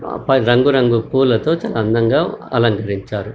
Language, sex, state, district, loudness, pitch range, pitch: Telugu, male, Telangana, Karimnagar, -16 LUFS, 110-130 Hz, 115 Hz